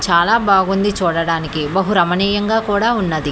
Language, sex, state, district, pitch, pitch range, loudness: Telugu, female, Telangana, Hyderabad, 190 Hz, 165-205 Hz, -16 LUFS